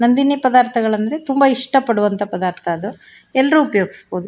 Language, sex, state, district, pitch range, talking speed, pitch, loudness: Kannada, female, Karnataka, Shimoga, 200-270 Hz, 125 wpm, 235 Hz, -16 LUFS